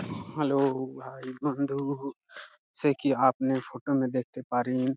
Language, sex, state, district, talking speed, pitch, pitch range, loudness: Bengali, male, West Bengal, Purulia, 135 wpm, 130 Hz, 130-140 Hz, -27 LUFS